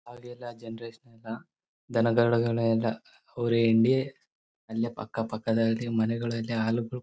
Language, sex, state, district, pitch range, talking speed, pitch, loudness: Kannada, male, Karnataka, Bellary, 115-120 Hz, 100 wpm, 115 Hz, -27 LUFS